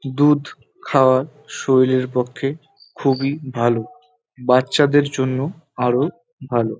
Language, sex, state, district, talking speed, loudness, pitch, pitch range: Bengali, male, West Bengal, North 24 Parganas, 90 wpm, -19 LUFS, 135 Hz, 130-150 Hz